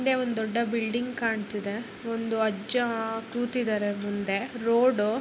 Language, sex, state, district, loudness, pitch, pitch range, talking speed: Kannada, male, Karnataka, Bellary, -28 LUFS, 225 Hz, 215-240 Hz, 125 wpm